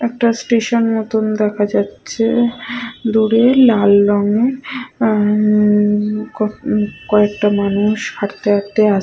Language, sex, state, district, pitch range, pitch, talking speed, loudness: Bengali, female, West Bengal, Purulia, 210-235 Hz, 215 Hz, 105 wpm, -15 LUFS